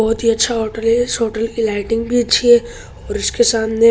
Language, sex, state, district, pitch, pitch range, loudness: Hindi, male, Delhi, New Delhi, 230 Hz, 225-235 Hz, -16 LUFS